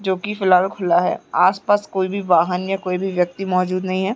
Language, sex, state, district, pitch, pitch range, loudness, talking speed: Hindi, female, Uttarakhand, Uttarkashi, 185 Hz, 180-195 Hz, -19 LUFS, 215 wpm